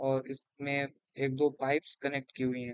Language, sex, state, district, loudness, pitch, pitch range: Hindi, male, Uttar Pradesh, Varanasi, -34 LUFS, 135 Hz, 135-140 Hz